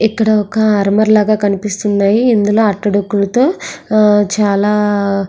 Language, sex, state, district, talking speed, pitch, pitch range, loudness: Telugu, female, Andhra Pradesh, Srikakulam, 115 wpm, 210 Hz, 200-215 Hz, -13 LUFS